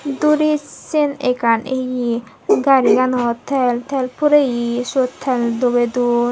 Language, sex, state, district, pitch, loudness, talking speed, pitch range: Chakma, female, Tripura, Dhalai, 255 Hz, -17 LUFS, 115 wpm, 240-280 Hz